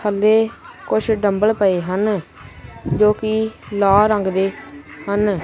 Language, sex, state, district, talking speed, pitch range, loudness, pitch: Punjabi, female, Punjab, Kapurthala, 120 wpm, 185-215 Hz, -18 LUFS, 205 Hz